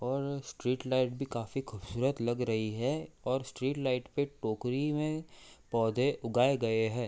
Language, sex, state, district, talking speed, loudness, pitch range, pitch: Hindi, male, Uttar Pradesh, Hamirpur, 160 wpm, -33 LUFS, 115-140 Hz, 130 Hz